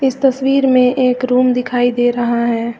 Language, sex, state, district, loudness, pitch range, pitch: Hindi, female, Uttar Pradesh, Lucknow, -14 LUFS, 240-260 Hz, 250 Hz